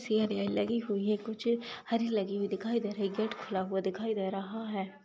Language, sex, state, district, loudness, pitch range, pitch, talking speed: Hindi, female, West Bengal, Dakshin Dinajpur, -33 LUFS, 200-225 Hz, 210 Hz, 215 wpm